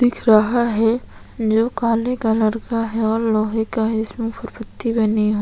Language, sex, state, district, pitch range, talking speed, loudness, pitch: Hindi, female, Chhattisgarh, Sukma, 220-230 Hz, 190 wpm, -19 LUFS, 225 Hz